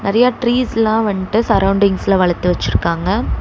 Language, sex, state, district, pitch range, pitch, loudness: Tamil, female, Tamil Nadu, Chennai, 190-225 Hz, 200 Hz, -15 LUFS